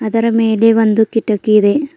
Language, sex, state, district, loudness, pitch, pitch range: Kannada, female, Karnataka, Bidar, -13 LUFS, 225 Hz, 215-225 Hz